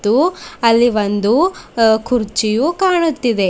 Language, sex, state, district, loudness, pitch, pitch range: Kannada, female, Karnataka, Bidar, -15 LUFS, 235 Hz, 220-330 Hz